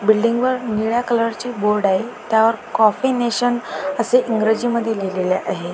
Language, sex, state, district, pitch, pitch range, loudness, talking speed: Marathi, female, Maharashtra, Pune, 225 Hz, 210-240 Hz, -19 LUFS, 155 wpm